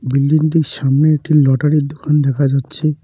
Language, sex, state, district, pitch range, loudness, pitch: Bengali, male, West Bengal, Cooch Behar, 135-155 Hz, -14 LUFS, 150 Hz